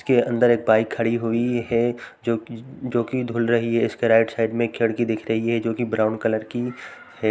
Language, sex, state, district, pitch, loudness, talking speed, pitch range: Hindi, male, Uttar Pradesh, Jalaun, 115 Hz, -22 LUFS, 240 wpm, 115-120 Hz